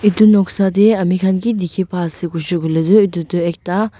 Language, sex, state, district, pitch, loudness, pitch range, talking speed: Nagamese, female, Nagaland, Dimapur, 190 Hz, -15 LUFS, 175-205 Hz, 165 wpm